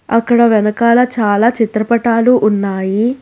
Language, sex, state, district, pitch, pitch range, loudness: Telugu, female, Telangana, Hyderabad, 230 Hz, 210-235 Hz, -12 LUFS